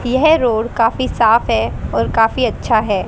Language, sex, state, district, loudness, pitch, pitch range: Hindi, female, Haryana, Rohtak, -15 LUFS, 235 Hz, 220-255 Hz